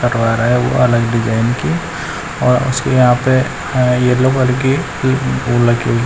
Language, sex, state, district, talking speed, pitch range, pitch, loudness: Hindi, male, Chandigarh, Chandigarh, 140 wpm, 120-130 Hz, 125 Hz, -14 LUFS